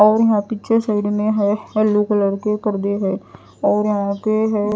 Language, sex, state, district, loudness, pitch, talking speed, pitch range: Hindi, female, Odisha, Nuapada, -18 LUFS, 210 Hz, 190 wpm, 205-215 Hz